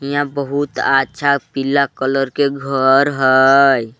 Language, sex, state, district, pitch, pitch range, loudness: Magahi, male, Jharkhand, Palamu, 140 Hz, 135-140 Hz, -15 LUFS